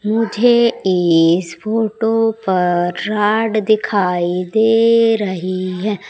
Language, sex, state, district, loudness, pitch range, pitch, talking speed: Hindi, female, Madhya Pradesh, Umaria, -15 LUFS, 180-225 Hz, 210 Hz, 80 wpm